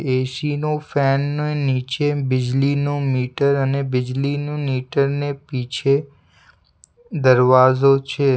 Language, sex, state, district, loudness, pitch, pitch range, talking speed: Gujarati, male, Gujarat, Valsad, -19 LUFS, 140 Hz, 130-145 Hz, 100 wpm